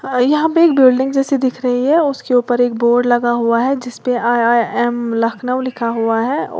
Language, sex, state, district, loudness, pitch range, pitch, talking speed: Hindi, female, Uttar Pradesh, Lalitpur, -15 LUFS, 235-265 Hz, 245 Hz, 200 wpm